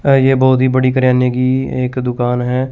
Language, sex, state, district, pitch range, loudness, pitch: Hindi, male, Chandigarh, Chandigarh, 125-130 Hz, -14 LUFS, 130 Hz